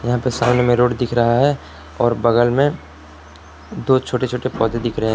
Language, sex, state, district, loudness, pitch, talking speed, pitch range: Hindi, male, Jharkhand, Palamu, -18 LUFS, 120 Hz, 200 wpm, 115-125 Hz